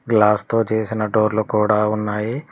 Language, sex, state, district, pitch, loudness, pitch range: Telugu, male, Telangana, Mahabubabad, 110 Hz, -19 LUFS, 105-110 Hz